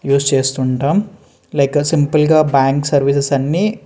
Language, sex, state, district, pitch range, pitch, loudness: Telugu, male, Andhra Pradesh, Srikakulam, 140-155 Hz, 140 Hz, -15 LUFS